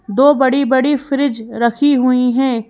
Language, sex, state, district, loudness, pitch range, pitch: Hindi, female, Madhya Pradesh, Bhopal, -14 LUFS, 245-280 Hz, 260 Hz